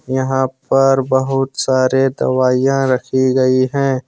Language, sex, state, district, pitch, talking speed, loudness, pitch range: Hindi, male, Jharkhand, Deoghar, 130 Hz, 115 wpm, -15 LUFS, 130-135 Hz